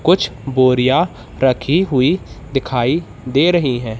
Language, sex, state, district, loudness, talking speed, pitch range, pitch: Hindi, male, Madhya Pradesh, Katni, -16 LUFS, 120 wpm, 125-165 Hz, 130 Hz